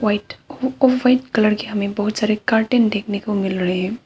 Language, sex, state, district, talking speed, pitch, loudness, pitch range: Hindi, female, Arunachal Pradesh, Papum Pare, 205 wpm, 215 Hz, -19 LUFS, 205-245 Hz